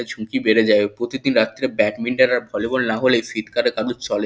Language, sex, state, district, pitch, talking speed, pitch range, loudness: Bengali, male, West Bengal, Kolkata, 120 Hz, 195 wpm, 110-130 Hz, -19 LUFS